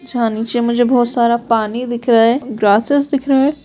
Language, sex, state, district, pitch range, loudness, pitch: Hindi, female, Bihar, Purnia, 230-265 Hz, -15 LUFS, 240 Hz